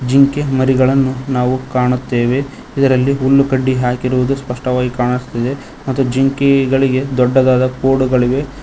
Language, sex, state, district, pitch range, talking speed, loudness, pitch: Kannada, male, Karnataka, Koppal, 125-135 Hz, 95 wpm, -15 LUFS, 130 Hz